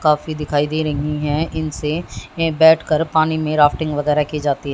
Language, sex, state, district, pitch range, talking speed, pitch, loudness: Hindi, female, Haryana, Jhajjar, 150-155 Hz, 175 wpm, 150 Hz, -18 LUFS